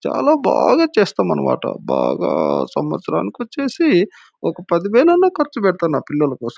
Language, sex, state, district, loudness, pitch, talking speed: Telugu, male, Andhra Pradesh, Anantapur, -17 LUFS, 245 Hz, 120 wpm